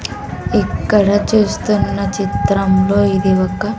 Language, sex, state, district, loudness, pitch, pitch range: Telugu, female, Andhra Pradesh, Sri Satya Sai, -15 LUFS, 200 Hz, 195-210 Hz